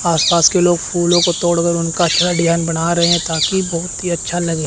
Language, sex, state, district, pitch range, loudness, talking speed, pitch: Hindi, male, Chandigarh, Chandigarh, 170-175 Hz, -15 LUFS, 220 wpm, 170 Hz